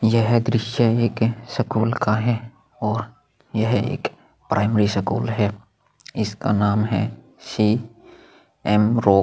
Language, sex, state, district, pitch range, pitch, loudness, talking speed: Hindi, male, Chhattisgarh, Sukma, 105-115 Hz, 115 Hz, -21 LUFS, 110 wpm